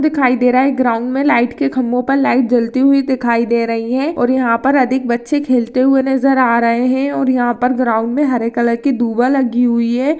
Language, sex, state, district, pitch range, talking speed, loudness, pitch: Hindi, female, Rajasthan, Churu, 235-270 Hz, 235 wpm, -14 LUFS, 255 Hz